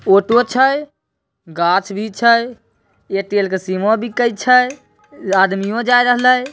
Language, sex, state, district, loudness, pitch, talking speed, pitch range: Maithili, female, Bihar, Begusarai, -15 LUFS, 230 Hz, 130 wpm, 195-245 Hz